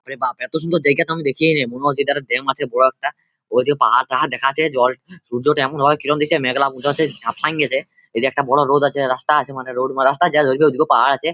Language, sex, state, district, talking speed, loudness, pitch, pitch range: Bengali, male, West Bengal, Purulia, 255 wpm, -17 LUFS, 145 Hz, 135-160 Hz